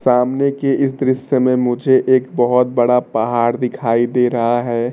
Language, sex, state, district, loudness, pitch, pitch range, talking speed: Hindi, male, Bihar, Kaimur, -16 LUFS, 125 Hz, 120-130 Hz, 170 wpm